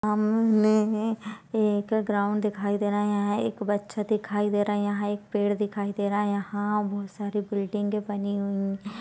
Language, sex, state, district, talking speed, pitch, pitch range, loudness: Hindi, female, Chhattisgarh, Balrampur, 195 wpm, 205 Hz, 205-210 Hz, -27 LUFS